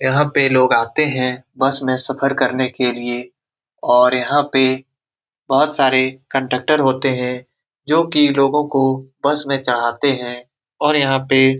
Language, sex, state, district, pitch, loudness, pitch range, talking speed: Hindi, male, Bihar, Saran, 135 Hz, -16 LUFS, 125-140 Hz, 160 wpm